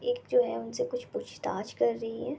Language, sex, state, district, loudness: Hindi, female, West Bengal, Jalpaiguri, -31 LUFS